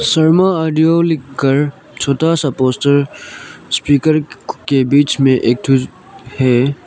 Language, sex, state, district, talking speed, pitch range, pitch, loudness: Hindi, male, Arunachal Pradesh, Lower Dibang Valley, 115 wpm, 130-155 Hz, 140 Hz, -14 LUFS